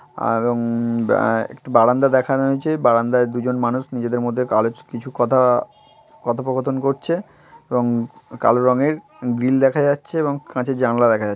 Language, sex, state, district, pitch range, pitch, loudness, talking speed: Bengali, male, West Bengal, Kolkata, 120-135 Hz, 125 Hz, -19 LUFS, 140 wpm